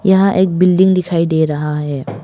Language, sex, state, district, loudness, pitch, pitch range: Hindi, female, Arunachal Pradesh, Papum Pare, -14 LUFS, 170 Hz, 150-190 Hz